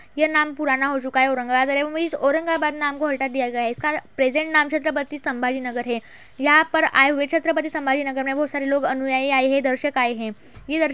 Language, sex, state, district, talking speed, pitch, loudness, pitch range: Hindi, female, Uttar Pradesh, Budaun, 240 wpm, 280 Hz, -21 LUFS, 265-305 Hz